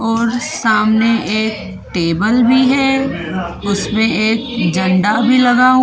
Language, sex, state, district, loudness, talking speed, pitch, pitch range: Hindi, female, Madhya Pradesh, Dhar, -14 LUFS, 125 wpm, 220 Hz, 200-245 Hz